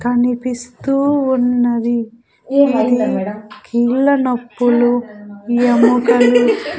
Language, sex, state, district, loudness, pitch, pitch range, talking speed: Telugu, female, Andhra Pradesh, Sri Satya Sai, -15 LUFS, 245 Hz, 235-250 Hz, 55 wpm